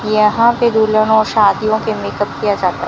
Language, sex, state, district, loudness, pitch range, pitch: Hindi, female, Rajasthan, Bikaner, -14 LUFS, 205-220 Hz, 215 Hz